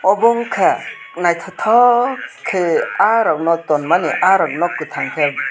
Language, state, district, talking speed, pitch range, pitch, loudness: Kokborok, Tripura, West Tripura, 100 wpm, 165-230 Hz, 180 Hz, -16 LUFS